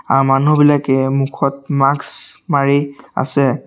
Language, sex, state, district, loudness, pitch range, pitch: Assamese, male, Assam, Sonitpur, -15 LUFS, 135-145 Hz, 140 Hz